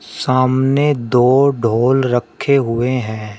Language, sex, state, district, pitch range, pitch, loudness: Hindi, male, Uttar Pradesh, Shamli, 120-135 Hz, 130 Hz, -15 LUFS